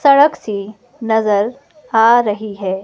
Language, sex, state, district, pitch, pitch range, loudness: Hindi, female, Himachal Pradesh, Shimla, 225 Hz, 205-265 Hz, -15 LUFS